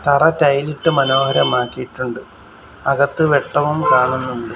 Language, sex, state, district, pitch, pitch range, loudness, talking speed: Malayalam, male, Kerala, Kollam, 140 Hz, 130-150 Hz, -16 LUFS, 80 wpm